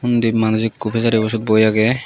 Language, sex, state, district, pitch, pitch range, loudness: Chakma, male, Tripura, West Tripura, 115 Hz, 110-115 Hz, -16 LUFS